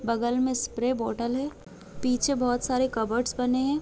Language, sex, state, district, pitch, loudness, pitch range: Hindi, female, Chhattisgarh, Bilaspur, 250 Hz, -27 LUFS, 240-255 Hz